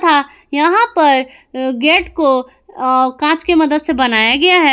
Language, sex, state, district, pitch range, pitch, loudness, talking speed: Hindi, female, Jharkhand, Garhwa, 260-325 Hz, 290 Hz, -13 LUFS, 150 wpm